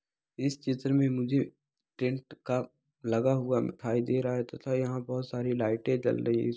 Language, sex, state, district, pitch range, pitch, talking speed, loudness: Hindi, male, Bihar, Purnia, 125-135 Hz, 125 Hz, 175 wpm, -31 LUFS